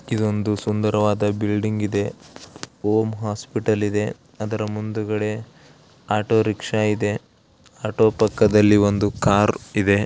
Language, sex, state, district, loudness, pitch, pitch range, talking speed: Kannada, male, Karnataka, Belgaum, -21 LUFS, 105 Hz, 105-110 Hz, 95 wpm